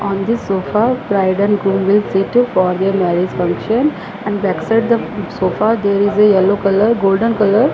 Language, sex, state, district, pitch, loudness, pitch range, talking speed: English, female, Punjab, Fazilka, 205 Hz, -15 LUFS, 195-225 Hz, 195 wpm